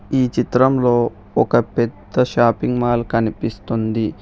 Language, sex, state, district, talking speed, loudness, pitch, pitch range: Telugu, male, Telangana, Hyderabad, 100 wpm, -18 LUFS, 120 Hz, 115-125 Hz